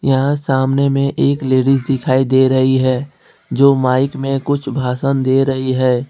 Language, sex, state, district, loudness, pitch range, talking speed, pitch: Hindi, male, Jharkhand, Ranchi, -15 LUFS, 130-135 Hz, 165 wpm, 135 Hz